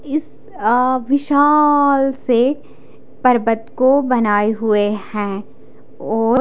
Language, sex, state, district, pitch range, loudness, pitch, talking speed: Hindi, female, Odisha, Khordha, 225-280 Hz, -16 LUFS, 250 Hz, 95 wpm